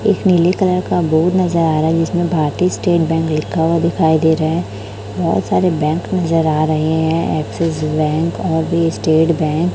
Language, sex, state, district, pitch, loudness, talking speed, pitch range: Hindi, female, Chhattisgarh, Raipur, 165 Hz, -15 LUFS, 205 wpm, 155-175 Hz